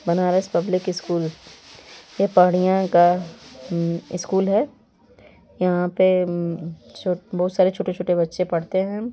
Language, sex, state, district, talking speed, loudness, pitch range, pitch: Hindi, female, Uttar Pradesh, Varanasi, 110 wpm, -21 LUFS, 170-185 Hz, 180 Hz